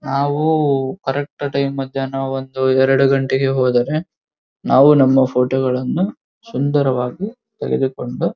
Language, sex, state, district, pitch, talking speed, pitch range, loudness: Kannada, male, Karnataka, Dharwad, 135 Hz, 100 wpm, 130-145 Hz, -17 LUFS